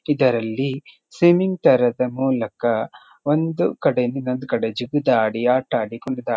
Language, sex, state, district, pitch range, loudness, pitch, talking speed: Kannada, male, Karnataka, Dharwad, 125-145 Hz, -20 LUFS, 130 Hz, 105 wpm